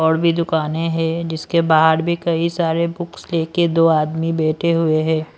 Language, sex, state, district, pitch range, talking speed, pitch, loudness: Hindi, male, Punjab, Pathankot, 160-170 Hz, 180 wpm, 165 Hz, -18 LUFS